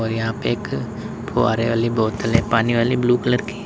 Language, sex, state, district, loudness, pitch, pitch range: Hindi, male, Uttar Pradesh, Lalitpur, -20 LUFS, 115 Hz, 115-125 Hz